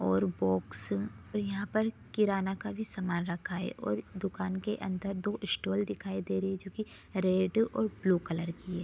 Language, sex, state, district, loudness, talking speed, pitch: Hindi, female, Bihar, Supaul, -33 LUFS, 195 wpm, 185 Hz